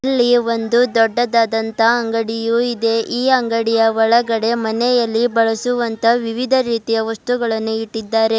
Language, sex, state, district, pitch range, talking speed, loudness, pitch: Kannada, female, Karnataka, Bidar, 225-240 Hz, 100 wpm, -17 LUFS, 230 Hz